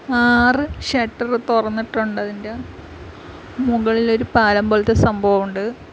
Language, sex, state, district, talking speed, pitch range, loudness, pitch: Malayalam, female, Kerala, Kollam, 90 wpm, 215-240 Hz, -18 LUFS, 225 Hz